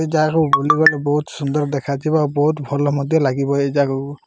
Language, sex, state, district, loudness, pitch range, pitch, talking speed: Odia, male, Odisha, Malkangiri, -18 LUFS, 140-155 Hz, 145 Hz, 155 wpm